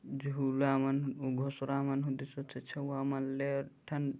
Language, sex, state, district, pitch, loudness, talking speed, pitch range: Chhattisgarhi, male, Chhattisgarh, Jashpur, 135 Hz, -36 LUFS, 155 wpm, 135-140 Hz